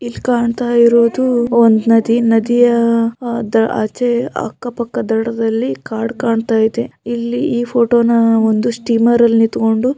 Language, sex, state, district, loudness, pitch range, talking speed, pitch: Kannada, female, Karnataka, Shimoga, -14 LUFS, 225-240 Hz, 140 wpm, 235 Hz